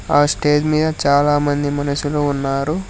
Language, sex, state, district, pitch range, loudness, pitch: Telugu, male, Telangana, Hyderabad, 145-150 Hz, -17 LUFS, 145 Hz